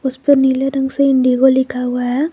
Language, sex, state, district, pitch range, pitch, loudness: Hindi, female, Jharkhand, Garhwa, 255-275 Hz, 265 Hz, -14 LUFS